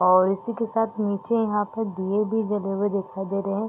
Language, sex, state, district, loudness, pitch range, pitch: Hindi, female, Bihar, East Champaran, -25 LUFS, 195-220 Hz, 205 Hz